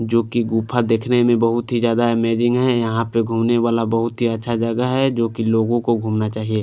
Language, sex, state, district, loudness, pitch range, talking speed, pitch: Hindi, male, Punjab, Fazilka, -18 LUFS, 115-120 Hz, 215 wpm, 115 Hz